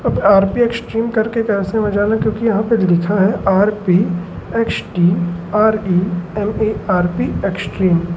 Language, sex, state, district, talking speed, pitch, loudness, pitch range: Hindi, male, Madhya Pradesh, Umaria, 140 wpm, 205 Hz, -16 LUFS, 180-220 Hz